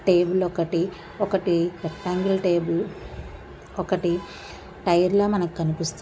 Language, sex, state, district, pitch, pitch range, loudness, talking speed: Telugu, female, Andhra Pradesh, Krishna, 175 Hz, 170-185 Hz, -24 LUFS, 100 wpm